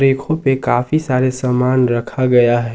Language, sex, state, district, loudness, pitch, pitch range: Hindi, male, Jharkhand, Ranchi, -15 LUFS, 130 Hz, 125-135 Hz